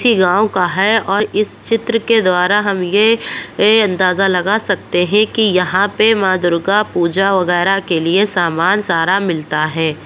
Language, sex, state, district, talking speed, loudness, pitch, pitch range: Hindi, female, Bihar, Purnia, 160 wpm, -14 LUFS, 195 Hz, 180-210 Hz